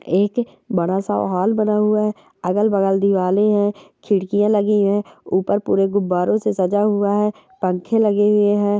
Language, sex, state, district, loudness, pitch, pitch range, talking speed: Hindi, female, Bihar, Darbhanga, -18 LUFS, 205 Hz, 195-210 Hz, 165 wpm